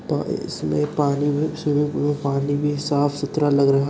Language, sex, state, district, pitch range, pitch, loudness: Hindi, male, Uttar Pradesh, Muzaffarnagar, 140-145 Hz, 145 Hz, -22 LUFS